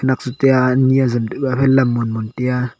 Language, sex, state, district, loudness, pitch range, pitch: Wancho, male, Arunachal Pradesh, Longding, -16 LUFS, 120-130 Hz, 125 Hz